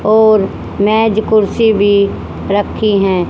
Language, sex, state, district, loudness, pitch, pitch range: Hindi, female, Haryana, Charkhi Dadri, -12 LUFS, 210 Hz, 200-220 Hz